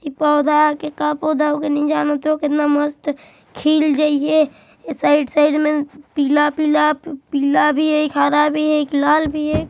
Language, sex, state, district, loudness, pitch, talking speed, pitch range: Hindi, male, Chhattisgarh, Jashpur, -17 LUFS, 300 Hz, 165 wpm, 290-300 Hz